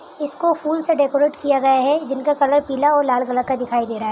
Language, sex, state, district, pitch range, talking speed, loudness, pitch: Hindi, female, Bihar, Araria, 260-295 Hz, 275 wpm, -18 LUFS, 280 Hz